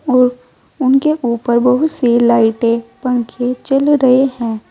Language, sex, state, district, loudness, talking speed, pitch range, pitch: Hindi, female, Uttar Pradesh, Saharanpur, -14 LUFS, 125 wpm, 235-265 Hz, 250 Hz